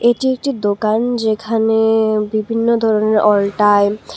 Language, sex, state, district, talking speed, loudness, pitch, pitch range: Bengali, female, Tripura, West Tripura, 115 wpm, -15 LUFS, 220 Hz, 210-230 Hz